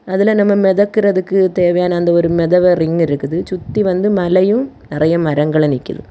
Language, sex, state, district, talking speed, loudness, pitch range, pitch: Tamil, female, Tamil Nadu, Kanyakumari, 145 wpm, -14 LUFS, 165-195 Hz, 180 Hz